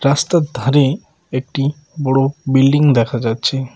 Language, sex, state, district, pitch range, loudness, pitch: Bengali, male, West Bengal, Cooch Behar, 130-145 Hz, -16 LUFS, 135 Hz